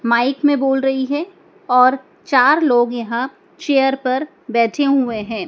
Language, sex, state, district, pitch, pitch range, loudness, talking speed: Hindi, male, Madhya Pradesh, Dhar, 270 Hz, 240-290 Hz, -17 LUFS, 155 wpm